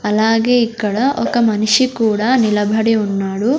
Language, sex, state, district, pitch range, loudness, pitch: Telugu, female, Andhra Pradesh, Sri Satya Sai, 210-240 Hz, -15 LUFS, 220 Hz